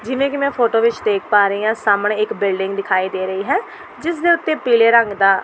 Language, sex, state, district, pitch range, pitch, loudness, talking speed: Punjabi, female, Delhi, New Delhi, 200-275 Hz, 220 Hz, -17 LUFS, 255 wpm